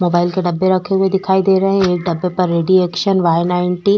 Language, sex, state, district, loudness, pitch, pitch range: Hindi, female, Uttarakhand, Tehri Garhwal, -15 LUFS, 185 Hz, 175-190 Hz